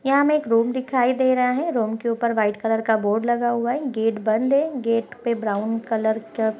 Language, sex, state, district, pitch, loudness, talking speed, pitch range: Hindi, female, Chhattisgarh, Bastar, 235 Hz, -22 LUFS, 245 wpm, 220-255 Hz